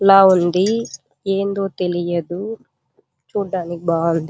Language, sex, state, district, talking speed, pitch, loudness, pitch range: Telugu, female, Andhra Pradesh, Chittoor, 85 wpm, 185 Hz, -19 LUFS, 170-195 Hz